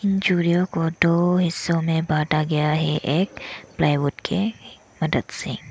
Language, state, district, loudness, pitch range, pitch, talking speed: Hindi, Arunachal Pradesh, Lower Dibang Valley, -22 LUFS, 155-180 Hz, 165 Hz, 135 wpm